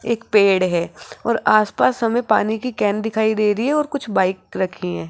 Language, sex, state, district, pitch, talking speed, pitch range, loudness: Hindi, female, Rajasthan, Jaipur, 215 Hz, 225 wpm, 190-230 Hz, -19 LUFS